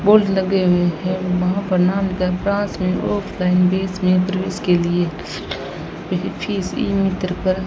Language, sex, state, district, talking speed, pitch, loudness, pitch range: Hindi, female, Rajasthan, Bikaner, 110 wpm, 185 Hz, -19 LUFS, 180-195 Hz